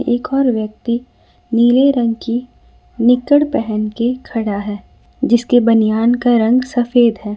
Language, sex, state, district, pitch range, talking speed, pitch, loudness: Hindi, female, Jharkhand, Ranchi, 225-250 Hz, 140 wpm, 240 Hz, -15 LUFS